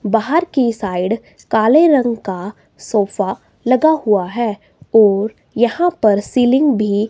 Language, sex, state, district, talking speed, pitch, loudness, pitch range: Hindi, female, Himachal Pradesh, Shimla, 125 wpm, 225 Hz, -15 LUFS, 205-255 Hz